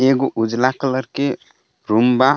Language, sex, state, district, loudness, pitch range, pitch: Bhojpuri, male, Jharkhand, Palamu, -18 LUFS, 120-135 Hz, 130 Hz